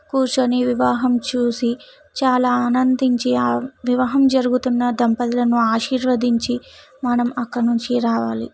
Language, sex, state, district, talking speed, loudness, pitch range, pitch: Telugu, female, Telangana, Nalgonda, 100 wpm, -19 LUFS, 235-255 Hz, 245 Hz